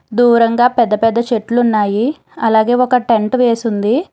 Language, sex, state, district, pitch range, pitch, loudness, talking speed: Telugu, female, Telangana, Hyderabad, 225-245 Hz, 235 Hz, -14 LUFS, 145 wpm